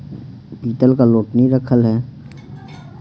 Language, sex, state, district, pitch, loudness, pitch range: Hindi, male, Bihar, Patna, 125 Hz, -15 LUFS, 115-130 Hz